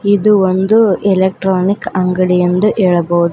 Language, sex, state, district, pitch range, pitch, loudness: Kannada, female, Karnataka, Koppal, 180-205 Hz, 190 Hz, -12 LUFS